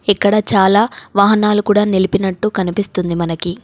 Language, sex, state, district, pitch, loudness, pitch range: Telugu, female, Telangana, Komaram Bheem, 200 Hz, -14 LUFS, 190-210 Hz